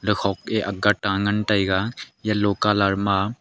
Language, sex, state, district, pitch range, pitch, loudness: Wancho, male, Arunachal Pradesh, Longding, 100-105 Hz, 100 Hz, -22 LUFS